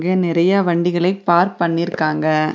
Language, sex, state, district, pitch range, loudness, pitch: Tamil, female, Tamil Nadu, Nilgiris, 165-180 Hz, -17 LUFS, 175 Hz